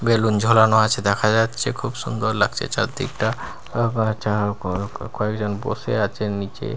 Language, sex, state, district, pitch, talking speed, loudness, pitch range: Bengali, male, Bihar, Katihar, 110 Hz, 150 wpm, -21 LUFS, 105-115 Hz